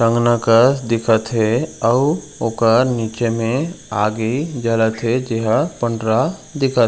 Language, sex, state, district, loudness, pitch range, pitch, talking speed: Chhattisgarhi, male, Chhattisgarh, Raigarh, -17 LUFS, 115-130 Hz, 115 Hz, 120 wpm